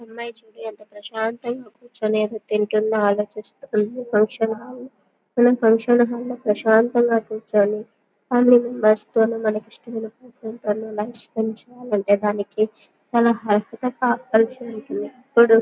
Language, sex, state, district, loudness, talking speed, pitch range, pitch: Telugu, female, Andhra Pradesh, Guntur, -21 LUFS, 105 wpm, 215-240 Hz, 225 Hz